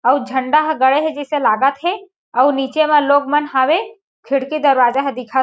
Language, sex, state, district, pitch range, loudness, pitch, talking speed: Chhattisgarhi, female, Chhattisgarh, Jashpur, 265-310 Hz, -16 LUFS, 285 Hz, 210 wpm